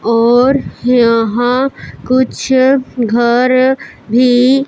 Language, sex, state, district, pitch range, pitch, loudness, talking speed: Hindi, female, Punjab, Pathankot, 240-260 Hz, 250 Hz, -12 LUFS, 65 wpm